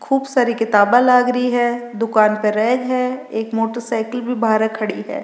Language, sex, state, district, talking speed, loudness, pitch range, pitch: Rajasthani, female, Rajasthan, Nagaur, 185 wpm, -17 LUFS, 220-250 Hz, 240 Hz